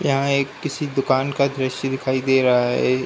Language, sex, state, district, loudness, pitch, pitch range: Hindi, male, Uttar Pradesh, Ghazipur, -20 LUFS, 135 Hz, 130-140 Hz